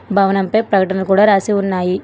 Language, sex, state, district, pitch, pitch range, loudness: Telugu, female, Telangana, Hyderabad, 195 Hz, 190-205 Hz, -14 LUFS